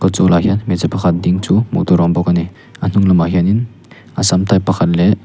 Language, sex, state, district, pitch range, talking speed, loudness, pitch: Mizo, male, Mizoram, Aizawl, 85-95 Hz, 250 wpm, -14 LUFS, 90 Hz